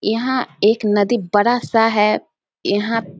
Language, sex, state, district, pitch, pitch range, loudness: Hindi, female, Bihar, Samastipur, 215 Hz, 205-230 Hz, -17 LUFS